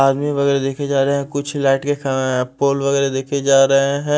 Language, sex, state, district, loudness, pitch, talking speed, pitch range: Hindi, male, Punjab, Fazilka, -17 LUFS, 140 Hz, 230 wpm, 135-140 Hz